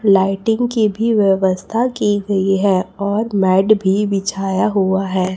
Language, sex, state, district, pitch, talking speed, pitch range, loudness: Hindi, female, Chhattisgarh, Raipur, 195 Hz, 145 wpm, 190-215 Hz, -16 LUFS